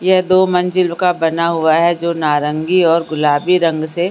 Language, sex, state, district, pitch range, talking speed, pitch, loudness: Hindi, female, Bihar, Supaul, 160-180 Hz, 205 wpm, 170 Hz, -14 LUFS